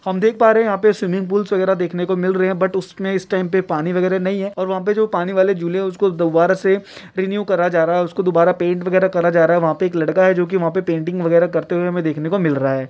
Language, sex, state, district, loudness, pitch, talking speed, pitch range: Hindi, male, Rajasthan, Churu, -17 LUFS, 185 Hz, 300 wpm, 175-190 Hz